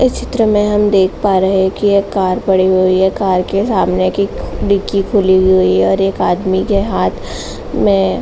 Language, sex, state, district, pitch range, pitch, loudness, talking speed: Hindi, female, Uttar Pradesh, Jalaun, 185-200 Hz, 190 Hz, -13 LUFS, 210 wpm